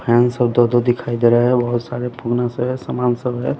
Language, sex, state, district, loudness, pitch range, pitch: Hindi, male, Bihar, West Champaran, -18 LUFS, 120-125 Hz, 120 Hz